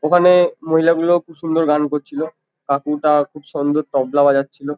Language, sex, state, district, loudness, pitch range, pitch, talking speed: Bengali, male, West Bengal, Kolkata, -17 LUFS, 145-165 Hz, 150 Hz, 140 wpm